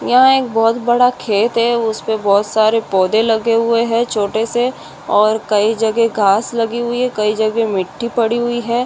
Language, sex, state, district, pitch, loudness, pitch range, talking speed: Hindi, female, Maharashtra, Aurangabad, 225 Hz, -15 LUFS, 215-240 Hz, 190 wpm